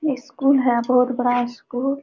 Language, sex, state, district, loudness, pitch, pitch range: Hindi, female, Bihar, Supaul, -20 LUFS, 250 Hz, 245-275 Hz